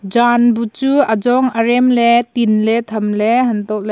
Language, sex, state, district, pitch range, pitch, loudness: Wancho, female, Arunachal Pradesh, Longding, 215-245 Hz, 235 Hz, -14 LUFS